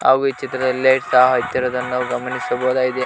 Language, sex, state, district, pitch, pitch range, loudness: Kannada, male, Karnataka, Koppal, 125 Hz, 125-130 Hz, -18 LUFS